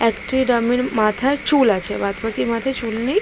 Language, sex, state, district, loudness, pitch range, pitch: Bengali, female, West Bengal, Jalpaiguri, -19 LUFS, 220-260 Hz, 235 Hz